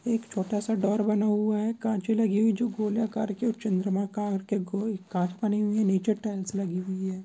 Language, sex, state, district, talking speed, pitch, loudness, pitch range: Hindi, male, Goa, North and South Goa, 215 wpm, 210 Hz, -28 LUFS, 195-220 Hz